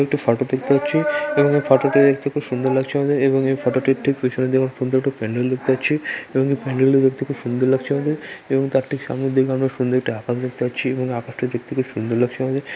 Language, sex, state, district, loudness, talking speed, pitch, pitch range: Bengali, male, West Bengal, Dakshin Dinajpur, -20 LUFS, 265 wpm, 130 Hz, 130-140 Hz